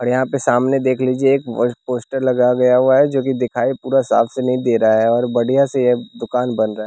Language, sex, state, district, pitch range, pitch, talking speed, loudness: Hindi, male, Bihar, West Champaran, 120-130 Hz, 125 Hz, 260 wpm, -16 LUFS